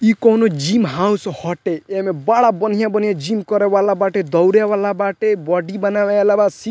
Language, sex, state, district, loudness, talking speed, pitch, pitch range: Bhojpuri, male, Bihar, Muzaffarpur, -16 LUFS, 180 wpm, 205 Hz, 195-215 Hz